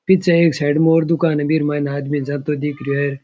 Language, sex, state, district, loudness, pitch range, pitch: Rajasthani, male, Rajasthan, Churu, -17 LUFS, 145-165 Hz, 150 Hz